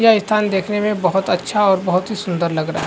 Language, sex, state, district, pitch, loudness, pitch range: Hindi, male, Uttarakhand, Uttarkashi, 195 Hz, -18 LUFS, 180-210 Hz